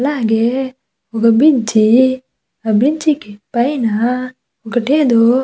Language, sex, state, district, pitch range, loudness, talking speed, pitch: Telugu, female, Andhra Pradesh, Visakhapatnam, 225-265 Hz, -14 LUFS, 110 wpm, 245 Hz